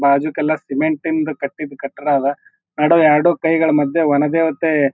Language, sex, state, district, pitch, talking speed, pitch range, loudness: Kannada, male, Karnataka, Bijapur, 155 Hz, 110 wpm, 145-160 Hz, -17 LUFS